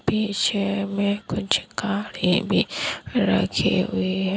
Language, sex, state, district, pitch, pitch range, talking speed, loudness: Hindi, female, Bihar, Kishanganj, 200 Hz, 190-205 Hz, 110 wpm, -23 LUFS